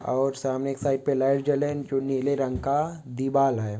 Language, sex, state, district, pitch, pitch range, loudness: Hindi, male, West Bengal, North 24 Parganas, 135 Hz, 135-140 Hz, -26 LUFS